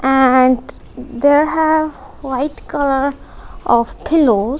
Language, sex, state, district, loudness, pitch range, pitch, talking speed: English, female, Punjab, Kapurthala, -15 LUFS, 255-290 Hz, 270 Hz, 90 wpm